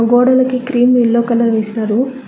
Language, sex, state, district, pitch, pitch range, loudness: Telugu, female, Telangana, Hyderabad, 245 Hz, 230-255 Hz, -13 LUFS